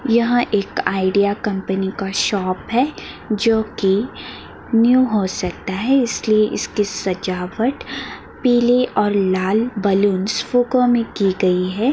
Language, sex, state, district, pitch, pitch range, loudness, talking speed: Hindi, female, Bihar, Madhepura, 205 Hz, 190-235 Hz, -18 LUFS, 125 wpm